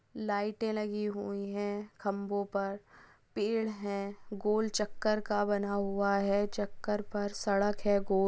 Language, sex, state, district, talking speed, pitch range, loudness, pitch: Hindi, female, Chhattisgarh, Bastar, 140 wpm, 200-210 Hz, -33 LUFS, 205 Hz